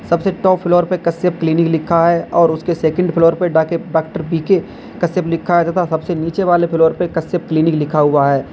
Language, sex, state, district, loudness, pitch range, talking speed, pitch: Hindi, male, Uttar Pradesh, Lalitpur, -15 LUFS, 160-175 Hz, 210 wpm, 170 Hz